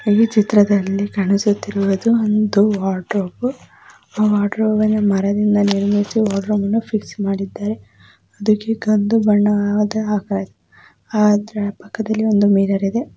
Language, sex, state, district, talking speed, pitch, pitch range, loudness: Kannada, female, Karnataka, Dakshina Kannada, 90 wpm, 205 Hz, 200-215 Hz, -17 LUFS